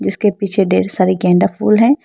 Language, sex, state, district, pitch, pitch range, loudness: Hindi, female, Arunachal Pradesh, Lower Dibang Valley, 195 Hz, 185-210 Hz, -14 LUFS